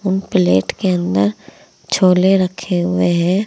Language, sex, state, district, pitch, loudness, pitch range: Hindi, female, Uttar Pradesh, Saharanpur, 180 Hz, -16 LUFS, 170-190 Hz